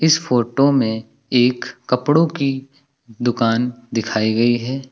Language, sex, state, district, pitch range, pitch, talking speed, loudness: Hindi, male, Uttar Pradesh, Lucknow, 115-140 Hz, 125 Hz, 120 wpm, -18 LUFS